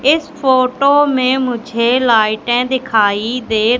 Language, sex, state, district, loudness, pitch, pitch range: Hindi, female, Madhya Pradesh, Katni, -14 LUFS, 250 Hz, 230-260 Hz